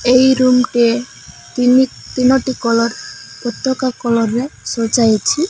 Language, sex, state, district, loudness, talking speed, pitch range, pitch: Odia, male, Odisha, Malkangiri, -15 LUFS, 110 wpm, 235-260 Hz, 250 Hz